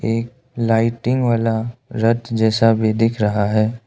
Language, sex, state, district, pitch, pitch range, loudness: Hindi, male, Arunachal Pradesh, Lower Dibang Valley, 115 Hz, 110-115 Hz, -18 LUFS